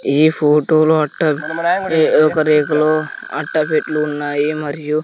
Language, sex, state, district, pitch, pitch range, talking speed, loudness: Telugu, male, Andhra Pradesh, Sri Satya Sai, 155 Hz, 150-155 Hz, 120 wpm, -16 LUFS